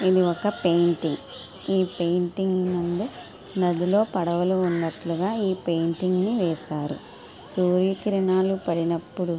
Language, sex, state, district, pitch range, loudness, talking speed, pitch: Telugu, female, Andhra Pradesh, Guntur, 170-190 Hz, -24 LUFS, 90 wpm, 180 Hz